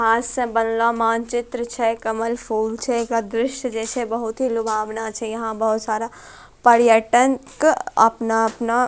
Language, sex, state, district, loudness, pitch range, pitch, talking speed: Angika, female, Bihar, Bhagalpur, -20 LUFS, 225-240 Hz, 230 Hz, 150 wpm